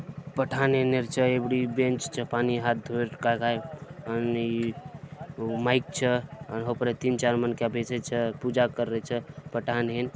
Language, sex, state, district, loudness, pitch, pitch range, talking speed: Halbi, male, Chhattisgarh, Bastar, -28 LUFS, 120 Hz, 120-135 Hz, 160 wpm